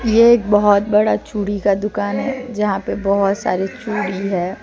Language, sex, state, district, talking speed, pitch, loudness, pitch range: Hindi, female, Jharkhand, Deoghar, 180 wpm, 205 Hz, -17 LUFS, 200-215 Hz